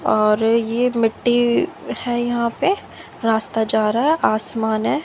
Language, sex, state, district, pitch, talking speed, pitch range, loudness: Hindi, female, Haryana, Jhajjar, 230 Hz, 140 wpm, 220-240 Hz, -19 LUFS